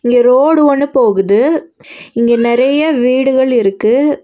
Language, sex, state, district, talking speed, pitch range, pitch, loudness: Tamil, female, Tamil Nadu, Nilgiris, 115 wpm, 235-285 Hz, 255 Hz, -11 LUFS